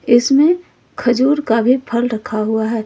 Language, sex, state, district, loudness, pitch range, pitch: Hindi, female, Jharkhand, Ranchi, -15 LUFS, 225-275 Hz, 240 Hz